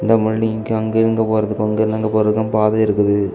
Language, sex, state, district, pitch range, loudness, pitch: Tamil, male, Tamil Nadu, Kanyakumari, 105-110 Hz, -17 LUFS, 110 Hz